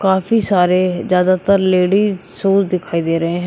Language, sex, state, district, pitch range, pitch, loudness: Hindi, male, Uttar Pradesh, Shamli, 180-195 Hz, 185 Hz, -15 LUFS